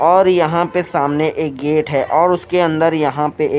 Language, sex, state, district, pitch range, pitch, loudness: Hindi, male, Himachal Pradesh, Shimla, 150-175 Hz, 155 Hz, -16 LUFS